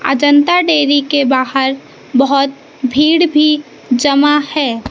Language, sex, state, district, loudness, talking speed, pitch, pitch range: Hindi, female, Madhya Pradesh, Katni, -12 LUFS, 110 wpm, 285 Hz, 270-300 Hz